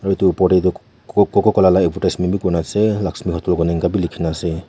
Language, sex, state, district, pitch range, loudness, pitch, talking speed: Nagamese, male, Nagaland, Kohima, 85-95 Hz, -17 LUFS, 90 Hz, 245 wpm